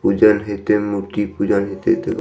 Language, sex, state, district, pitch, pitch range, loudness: Maithili, male, Bihar, Madhepura, 100 Hz, 100-105 Hz, -18 LUFS